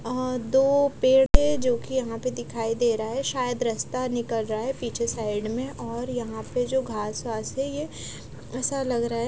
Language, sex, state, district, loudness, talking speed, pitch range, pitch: Hindi, female, Punjab, Fazilka, -26 LUFS, 195 wpm, 230-265 Hz, 245 Hz